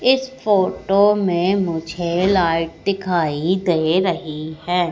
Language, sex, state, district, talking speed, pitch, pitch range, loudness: Hindi, female, Madhya Pradesh, Katni, 110 wpm, 180 Hz, 165-195 Hz, -19 LUFS